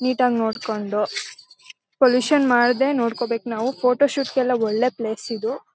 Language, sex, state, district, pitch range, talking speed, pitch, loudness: Kannada, female, Karnataka, Mysore, 225-260 Hz, 135 wpm, 245 Hz, -21 LUFS